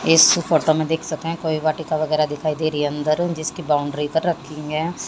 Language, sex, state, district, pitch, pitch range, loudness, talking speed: Hindi, female, Haryana, Jhajjar, 155 Hz, 150-160 Hz, -20 LUFS, 210 wpm